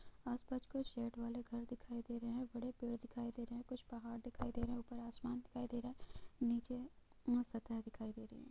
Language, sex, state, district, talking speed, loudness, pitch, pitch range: Hindi, female, Bihar, Gopalganj, 225 wpm, -46 LUFS, 240 Hz, 235-245 Hz